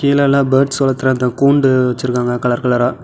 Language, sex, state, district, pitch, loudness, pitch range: Tamil, male, Tamil Nadu, Namakkal, 130 Hz, -14 LUFS, 125-140 Hz